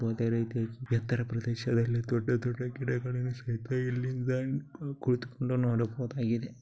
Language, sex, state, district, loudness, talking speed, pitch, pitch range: Kannada, male, Karnataka, Bellary, -32 LUFS, 100 wpm, 125 Hz, 115-125 Hz